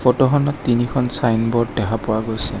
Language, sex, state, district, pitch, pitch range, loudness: Assamese, male, Assam, Kamrup Metropolitan, 120 Hz, 110-125 Hz, -18 LUFS